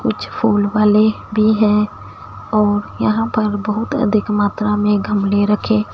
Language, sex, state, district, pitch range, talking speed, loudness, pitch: Hindi, female, Punjab, Fazilka, 205-215 Hz, 140 wpm, -16 LUFS, 210 Hz